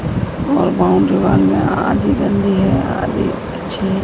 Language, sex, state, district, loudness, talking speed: Hindi, female, Madhya Pradesh, Dhar, -16 LUFS, 75 wpm